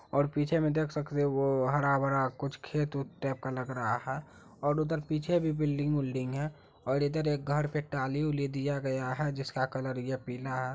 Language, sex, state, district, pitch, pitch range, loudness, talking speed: Hindi, male, Bihar, Araria, 140 Hz, 130-150 Hz, -32 LUFS, 220 wpm